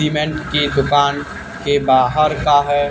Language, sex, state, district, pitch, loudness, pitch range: Hindi, male, Haryana, Charkhi Dadri, 145 Hz, -16 LUFS, 140-150 Hz